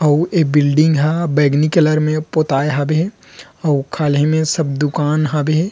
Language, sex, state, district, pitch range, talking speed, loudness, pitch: Chhattisgarhi, male, Chhattisgarh, Rajnandgaon, 145-160 Hz, 170 wpm, -16 LUFS, 155 Hz